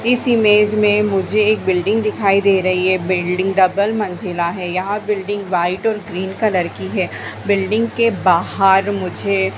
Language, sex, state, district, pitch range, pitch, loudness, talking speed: Hindi, female, Bihar, Jahanabad, 185-210 Hz, 195 Hz, -17 LUFS, 155 wpm